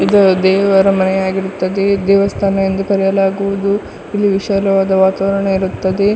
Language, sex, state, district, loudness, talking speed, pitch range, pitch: Kannada, female, Karnataka, Dakshina Kannada, -14 LUFS, 105 wpm, 190-200 Hz, 195 Hz